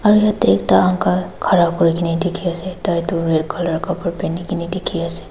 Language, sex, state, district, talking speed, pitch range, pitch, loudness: Nagamese, female, Nagaland, Dimapur, 170 wpm, 160-180 Hz, 170 Hz, -18 LUFS